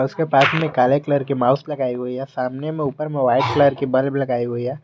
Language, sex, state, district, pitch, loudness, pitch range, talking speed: Hindi, male, Jharkhand, Garhwa, 135 Hz, -19 LUFS, 125-145 Hz, 260 wpm